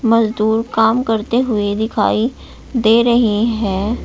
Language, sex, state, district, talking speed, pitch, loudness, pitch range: Hindi, male, Uttar Pradesh, Shamli, 120 wpm, 225 Hz, -16 LUFS, 215-235 Hz